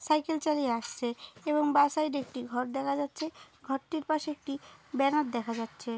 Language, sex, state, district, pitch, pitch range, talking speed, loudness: Bengali, female, West Bengal, Dakshin Dinajpur, 280 Hz, 245-305 Hz, 160 wpm, -31 LUFS